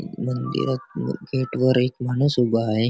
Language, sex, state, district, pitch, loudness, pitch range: Marathi, male, Maharashtra, Chandrapur, 125 Hz, -23 LUFS, 110-130 Hz